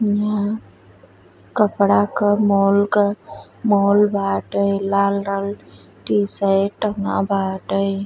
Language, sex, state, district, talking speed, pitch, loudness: Bhojpuri, female, Uttar Pradesh, Deoria, 90 wpm, 200 Hz, -19 LUFS